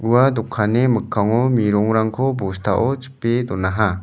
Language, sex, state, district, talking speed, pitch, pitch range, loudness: Garo, male, Meghalaya, West Garo Hills, 105 wpm, 115 Hz, 105-125 Hz, -19 LUFS